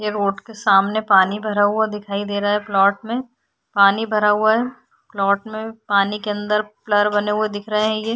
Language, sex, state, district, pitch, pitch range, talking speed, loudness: Hindi, female, Bihar, Vaishali, 210 Hz, 205-220 Hz, 215 wpm, -19 LUFS